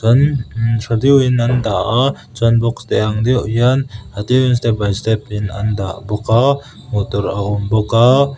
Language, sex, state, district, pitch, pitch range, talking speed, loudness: Mizo, male, Mizoram, Aizawl, 115 Hz, 105-125 Hz, 185 wpm, -16 LUFS